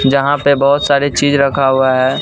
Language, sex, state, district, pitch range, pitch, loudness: Hindi, male, Bihar, Katihar, 135-140 Hz, 140 Hz, -12 LUFS